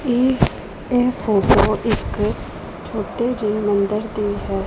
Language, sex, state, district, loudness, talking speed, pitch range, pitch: Punjabi, female, Punjab, Pathankot, -20 LUFS, 115 wpm, 205-245 Hz, 215 Hz